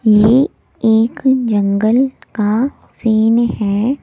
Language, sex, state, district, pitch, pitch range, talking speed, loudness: Hindi, female, Delhi, New Delhi, 225 Hz, 215-255 Hz, 90 wpm, -14 LUFS